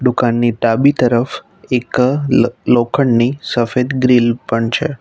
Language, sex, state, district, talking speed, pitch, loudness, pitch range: Gujarati, male, Gujarat, Navsari, 120 wpm, 125 Hz, -15 LUFS, 120-130 Hz